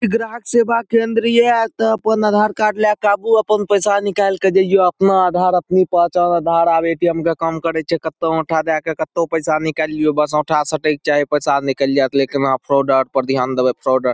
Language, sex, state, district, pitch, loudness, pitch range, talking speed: Maithili, male, Bihar, Saharsa, 170 Hz, -16 LUFS, 150-205 Hz, 210 wpm